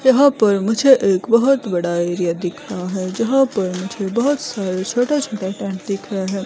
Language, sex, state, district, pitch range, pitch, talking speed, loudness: Hindi, female, Himachal Pradesh, Shimla, 185-245 Hz, 195 Hz, 195 wpm, -18 LUFS